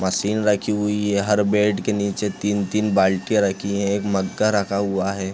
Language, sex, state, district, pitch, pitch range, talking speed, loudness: Hindi, male, Chhattisgarh, Sarguja, 100 Hz, 100-105 Hz, 190 wpm, -21 LUFS